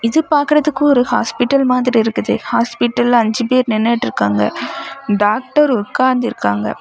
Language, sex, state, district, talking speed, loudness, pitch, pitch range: Tamil, female, Tamil Nadu, Kanyakumari, 115 wpm, -15 LUFS, 245 Hz, 220-275 Hz